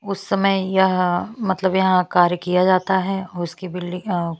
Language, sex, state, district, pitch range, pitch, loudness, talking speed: Hindi, female, Chhattisgarh, Bastar, 180-190 Hz, 185 Hz, -20 LUFS, 165 wpm